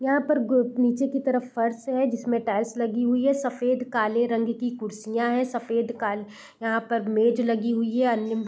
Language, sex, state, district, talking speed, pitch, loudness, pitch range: Hindi, female, Bihar, East Champaran, 200 wpm, 235 Hz, -25 LUFS, 230-250 Hz